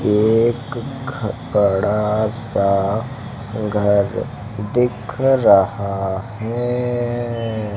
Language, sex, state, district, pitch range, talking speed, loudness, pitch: Hindi, male, Madhya Pradesh, Dhar, 105-120 Hz, 60 wpm, -19 LUFS, 110 Hz